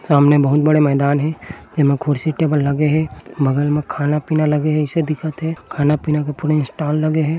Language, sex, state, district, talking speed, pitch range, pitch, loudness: Chhattisgarhi, male, Chhattisgarh, Bilaspur, 210 wpm, 145-155 Hz, 150 Hz, -17 LUFS